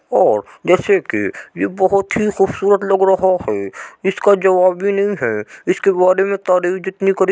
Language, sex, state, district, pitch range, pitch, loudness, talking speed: Hindi, male, Uttar Pradesh, Jyotiba Phule Nagar, 185-200 Hz, 195 Hz, -16 LUFS, 180 wpm